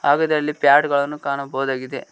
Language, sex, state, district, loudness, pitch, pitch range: Kannada, male, Karnataka, Koppal, -19 LUFS, 140 Hz, 135-150 Hz